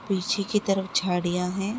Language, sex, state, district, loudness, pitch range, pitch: Hindi, female, Uttar Pradesh, Etah, -26 LUFS, 180-200 Hz, 195 Hz